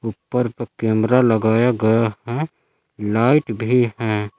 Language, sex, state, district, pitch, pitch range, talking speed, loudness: Hindi, male, Jharkhand, Palamu, 115 Hz, 110-125 Hz, 125 wpm, -19 LUFS